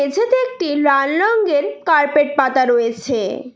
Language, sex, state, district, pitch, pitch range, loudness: Bengali, female, West Bengal, Cooch Behar, 290 Hz, 260-340 Hz, -16 LUFS